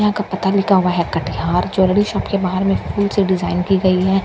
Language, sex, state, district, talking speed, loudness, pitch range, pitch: Hindi, female, Bihar, Katihar, 295 wpm, -17 LUFS, 180-195 Hz, 190 Hz